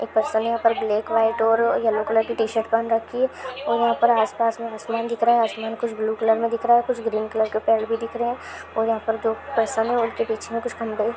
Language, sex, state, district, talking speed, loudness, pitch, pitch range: Hindi, female, Chhattisgarh, Jashpur, 260 wpm, -22 LUFS, 225 Hz, 220-230 Hz